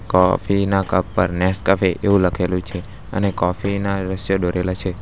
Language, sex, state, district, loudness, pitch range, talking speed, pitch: Gujarati, male, Gujarat, Valsad, -19 LUFS, 90-100 Hz, 165 wpm, 95 Hz